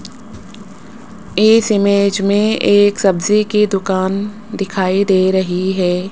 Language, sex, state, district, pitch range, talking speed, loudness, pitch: Hindi, female, Rajasthan, Jaipur, 190-210 Hz, 110 wpm, -14 LUFS, 200 Hz